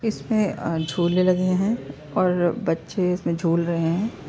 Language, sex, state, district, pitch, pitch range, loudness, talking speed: Hindi, female, Bihar, Saharsa, 180 Hz, 165-195 Hz, -23 LUFS, 155 wpm